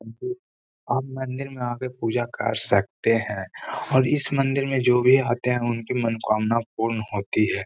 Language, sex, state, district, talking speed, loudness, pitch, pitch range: Hindi, male, Bihar, Gaya, 165 wpm, -24 LUFS, 125 Hz, 115-130 Hz